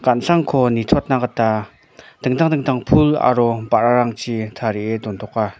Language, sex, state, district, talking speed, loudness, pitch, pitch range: Garo, male, Meghalaya, North Garo Hills, 105 wpm, -18 LUFS, 120 Hz, 110-130 Hz